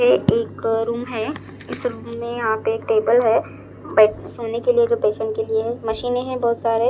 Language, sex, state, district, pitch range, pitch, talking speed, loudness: Hindi, male, Punjab, Fazilka, 220-240 Hz, 230 Hz, 215 wpm, -20 LUFS